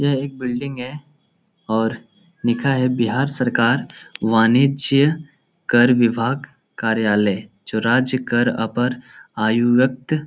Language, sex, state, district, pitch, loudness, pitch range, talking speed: Hindi, male, Bihar, Jahanabad, 125 Hz, -19 LUFS, 115-140 Hz, 110 wpm